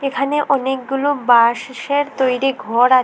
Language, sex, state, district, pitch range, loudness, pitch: Bengali, female, Tripura, West Tripura, 250-280 Hz, -17 LUFS, 265 Hz